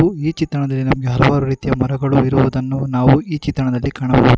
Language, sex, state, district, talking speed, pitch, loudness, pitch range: Kannada, male, Karnataka, Bangalore, 95 wpm, 135 Hz, -17 LUFS, 130-140 Hz